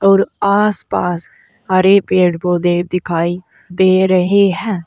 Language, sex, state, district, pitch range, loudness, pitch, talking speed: Hindi, female, Uttar Pradesh, Saharanpur, 175-195 Hz, -14 LUFS, 185 Hz, 125 wpm